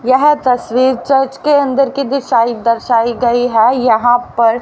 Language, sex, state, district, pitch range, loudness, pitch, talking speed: Hindi, female, Haryana, Rohtak, 235-270 Hz, -13 LUFS, 245 Hz, 155 wpm